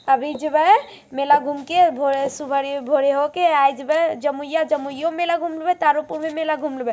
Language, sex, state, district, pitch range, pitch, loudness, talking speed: Magahi, female, Bihar, Jamui, 280-320 Hz, 295 Hz, -20 LUFS, 200 wpm